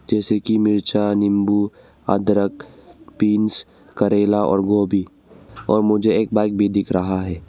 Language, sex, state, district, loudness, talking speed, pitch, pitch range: Hindi, male, Arunachal Pradesh, Longding, -19 LUFS, 135 wpm, 105 Hz, 100-105 Hz